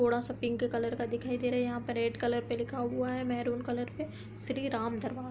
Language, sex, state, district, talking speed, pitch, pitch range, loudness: Hindi, female, Uttar Pradesh, Hamirpur, 260 wpm, 240 Hz, 235-245 Hz, -34 LUFS